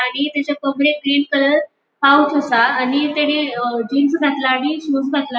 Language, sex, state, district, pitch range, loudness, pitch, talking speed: Konkani, female, Goa, North and South Goa, 270-290 Hz, -16 LUFS, 285 Hz, 165 wpm